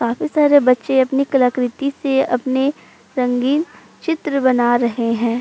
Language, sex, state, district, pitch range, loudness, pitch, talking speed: Hindi, female, Uttar Pradesh, Jalaun, 245-280 Hz, -17 LUFS, 260 Hz, 135 wpm